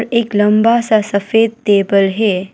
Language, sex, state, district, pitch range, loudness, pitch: Hindi, female, Arunachal Pradesh, Papum Pare, 200-225 Hz, -13 LUFS, 215 Hz